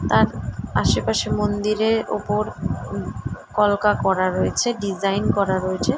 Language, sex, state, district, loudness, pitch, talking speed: Bengali, female, West Bengal, Jalpaiguri, -21 LUFS, 195 Hz, 120 wpm